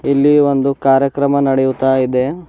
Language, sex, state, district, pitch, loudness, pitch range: Kannada, male, Karnataka, Bidar, 135 Hz, -14 LUFS, 135-140 Hz